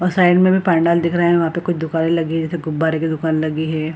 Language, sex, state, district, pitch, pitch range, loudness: Hindi, female, Bihar, Purnia, 165 Hz, 160-170 Hz, -17 LUFS